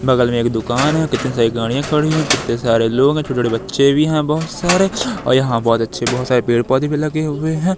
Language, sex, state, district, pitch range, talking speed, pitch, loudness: Hindi, male, Madhya Pradesh, Katni, 120-155 Hz, 255 wpm, 130 Hz, -16 LUFS